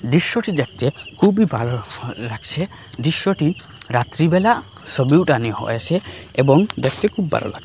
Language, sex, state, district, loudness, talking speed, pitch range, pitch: Bengali, male, Assam, Hailakandi, -19 LUFS, 120 wpm, 120-180 Hz, 135 Hz